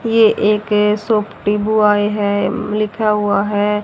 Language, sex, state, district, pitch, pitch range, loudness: Hindi, female, Haryana, Rohtak, 210 Hz, 205-215 Hz, -16 LUFS